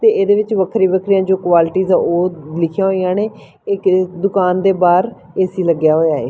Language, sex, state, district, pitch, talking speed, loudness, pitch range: Punjabi, female, Punjab, Fazilka, 185 Hz, 190 wpm, -15 LUFS, 175-195 Hz